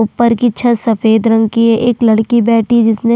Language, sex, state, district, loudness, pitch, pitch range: Hindi, female, Chhattisgarh, Sukma, -11 LUFS, 230 Hz, 225-235 Hz